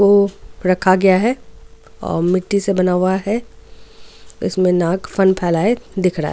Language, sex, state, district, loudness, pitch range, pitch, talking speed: Hindi, female, Goa, North and South Goa, -17 LUFS, 185-200 Hz, 185 Hz, 160 wpm